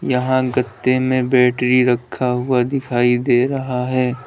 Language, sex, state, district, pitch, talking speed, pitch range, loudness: Hindi, male, Uttar Pradesh, Lalitpur, 125 Hz, 140 wpm, 125-130 Hz, -17 LUFS